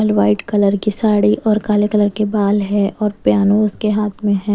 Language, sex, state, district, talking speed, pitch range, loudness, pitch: Hindi, female, Bihar, West Champaran, 210 wpm, 200-210 Hz, -16 LUFS, 205 Hz